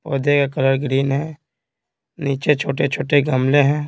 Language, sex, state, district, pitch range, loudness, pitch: Hindi, male, Bihar, Patna, 135-145 Hz, -18 LUFS, 140 Hz